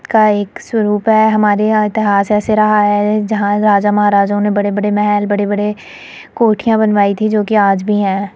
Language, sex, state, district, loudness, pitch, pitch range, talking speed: Hindi, female, Uttar Pradesh, Muzaffarnagar, -13 LUFS, 210 Hz, 205-215 Hz, 195 wpm